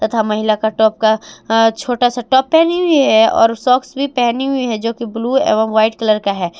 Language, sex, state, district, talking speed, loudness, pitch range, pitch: Hindi, female, Jharkhand, Palamu, 230 wpm, -14 LUFS, 220-260 Hz, 225 Hz